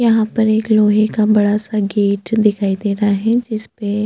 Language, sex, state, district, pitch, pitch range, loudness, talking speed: Hindi, female, Chhattisgarh, Jashpur, 215 Hz, 205-220 Hz, -16 LUFS, 205 wpm